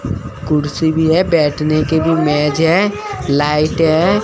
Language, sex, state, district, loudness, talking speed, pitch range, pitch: Hindi, female, Chandigarh, Chandigarh, -15 LUFS, 140 wpm, 150-165 Hz, 155 Hz